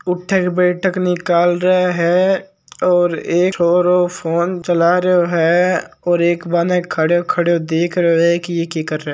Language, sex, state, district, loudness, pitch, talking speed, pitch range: Marwari, male, Rajasthan, Nagaur, -16 LUFS, 175 Hz, 155 wpm, 170-180 Hz